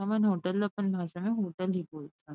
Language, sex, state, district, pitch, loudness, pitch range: Chhattisgarhi, female, Chhattisgarh, Rajnandgaon, 190 Hz, -31 LUFS, 175-205 Hz